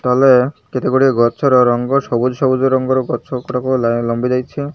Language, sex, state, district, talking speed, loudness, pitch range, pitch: Odia, male, Odisha, Malkangiri, 165 wpm, -15 LUFS, 120-130 Hz, 125 Hz